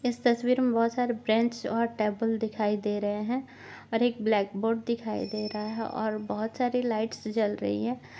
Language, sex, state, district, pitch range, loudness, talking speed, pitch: Hindi, female, Chhattisgarh, Bastar, 210-235 Hz, -29 LUFS, 195 wpm, 225 Hz